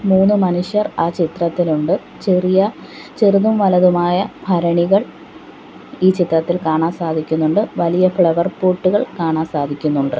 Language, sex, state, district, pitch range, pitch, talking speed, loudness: Malayalam, female, Kerala, Kollam, 165-190 Hz, 180 Hz, 100 wpm, -16 LUFS